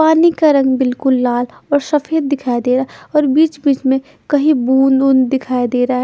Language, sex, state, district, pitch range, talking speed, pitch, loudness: Hindi, female, Chandigarh, Chandigarh, 255-295 Hz, 220 wpm, 270 Hz, -14 LUFS